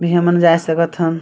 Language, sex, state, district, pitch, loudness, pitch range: Chhattisgarhi, female, Chhattisgarh, Sarguja, 170 Hz, -15 LUFS, 165-175 Hz